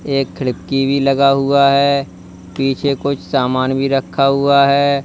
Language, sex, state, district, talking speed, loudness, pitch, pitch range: Hindi, male, Uttar Pradesh, Lalitpur, 155 wpm, -15 LUFS, 135 Hz, 135-140 Hz